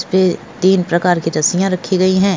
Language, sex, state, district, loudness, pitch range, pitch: Hindi, female, Goa, North and South Goa, -15 LUFS, 175-190 Hz, 185 Hz